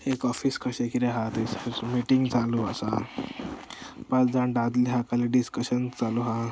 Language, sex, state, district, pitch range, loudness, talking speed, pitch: Konkani, male, Goa, North and South Goa, 115-125 Hz, -27 LUFS, 155 wpm, 120 Hz